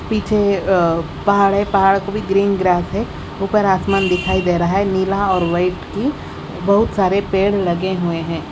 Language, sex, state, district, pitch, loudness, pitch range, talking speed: Hindi, female, Odisha, Khordha, 195 Hz, -17 LUFS, 180-200 Hz, 190 wpm